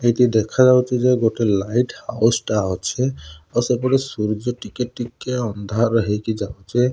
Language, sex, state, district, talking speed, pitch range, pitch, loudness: Odia, male, Odisha, Malkangiri, 140 wpm, 105-125 Hz, 120 Hz, -20 LUFS